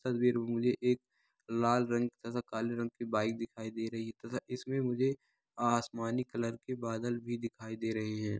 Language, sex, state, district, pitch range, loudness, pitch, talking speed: Hindi, male, Bihar, Samastipur, 115-125 Hz, -35 LUFS, 120 Hz, 195 wpm